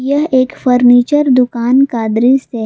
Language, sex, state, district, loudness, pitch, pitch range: Hindi, female, Jharkhand, Garhwa, -11 LUFS, 255 Hz, 240-270 Hz